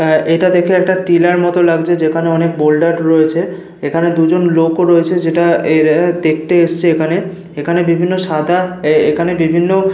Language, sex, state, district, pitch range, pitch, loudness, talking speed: Bengali, male, Jharkhand, Sahebganj, 160-175 Hz, 170 Hz, -12 LUFS, 170 wpm